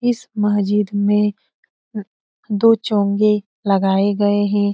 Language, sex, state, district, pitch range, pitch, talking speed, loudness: Hindi, female, Bihar, Lakhisarai, 205-215 Hz, 205 Hz, 100 wpm, -17 LUFS